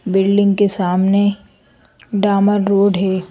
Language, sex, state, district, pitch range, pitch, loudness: Hindi, female, Madhya Pradesh, Bhopal, 190-205 Hz, 200 Hz, -15 LUFS